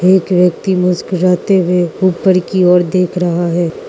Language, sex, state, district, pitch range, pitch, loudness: Hindi, female, Mizoram, Aizawl, 180-185 Hz, 180 Hz, -13 LUFS